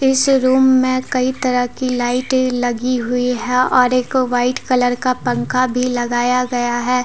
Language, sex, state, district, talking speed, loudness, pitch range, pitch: Hindi, female, Jharkhand, Deoghar, 170 wpm, -16 LUFS, 245-255 Hz, 250 Hz